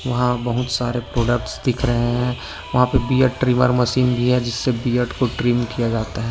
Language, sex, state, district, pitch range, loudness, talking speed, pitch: Hindi, male, Maharashtra, Sindhudurg, 120-125 Hz, -20 LUFS, 200 wpm, 125 Hz